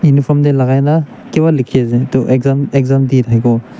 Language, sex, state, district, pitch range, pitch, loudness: Nagamese, male, Nagaland, Dimapur, 130-145 Hz, 135 Hz, -12 LUFS